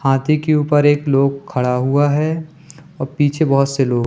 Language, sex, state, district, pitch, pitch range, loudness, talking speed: Hindi, male, Madhya Pradesh, Katni, 145 Hz, 135-155 Hz, -16 LUFS, 205 wpm